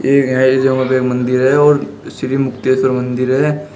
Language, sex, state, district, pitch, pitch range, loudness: Hindi, male, Uttar Pradesh, Shamli, 130 Hz, 130-135 Hz, -14 LUFS